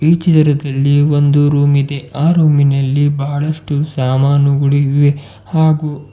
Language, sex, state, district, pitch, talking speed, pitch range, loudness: Kannada, male, Karnataka, Bidar, 145 Hz, 125 wpm, 140-150 Hz, -13 LUFS